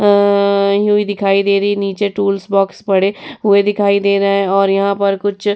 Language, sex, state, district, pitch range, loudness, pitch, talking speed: Hindi, female, Uttar Pradesh, Etah, 195-205 Hz, -14 LUFS, 200 Hz, 215 wpm